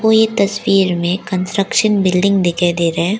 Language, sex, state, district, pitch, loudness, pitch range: Hindi, female, Arunachal Pradesh, Lower Dibang Valley, 190 Hz, -15 LUFS, 175-200 Hz